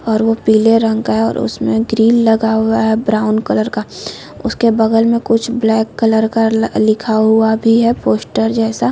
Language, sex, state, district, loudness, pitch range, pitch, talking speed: Hindi, female, Chhattisgarh, Korba, -13 LUFS, 215-225 Hz, 220 Hz, 190 wpm